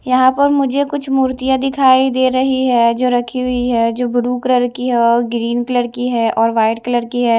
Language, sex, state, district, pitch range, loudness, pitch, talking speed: Hindi, female, Odisha, Malkangiri, 235-260 Hz, -15 LUFS, 250 Hz, 225 wpm